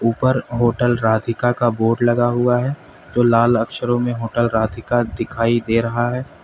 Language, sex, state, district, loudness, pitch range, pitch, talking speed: Hindi, male, Uttar Pradesh, Lalitpur, -18 LUFS, 115-120 Hz, 120 Hz, 165 wpm